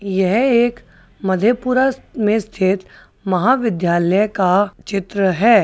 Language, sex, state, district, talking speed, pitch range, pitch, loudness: Hindi, male, Bihar, Madhepura, 95 wpm, 190-235 Hz, 205 Hz, -17 LUFS